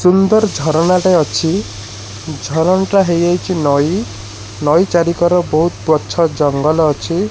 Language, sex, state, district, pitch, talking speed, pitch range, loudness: Odia, male, Odisha, Khordha, 165 Hz, 105 wpm, 145-180 Hz, -14 LUFS